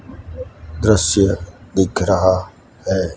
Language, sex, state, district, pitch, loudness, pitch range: Hindi, male, Gujarat, Gandhinagar, 95 Hz, -17 LUFS, 90-100 Hz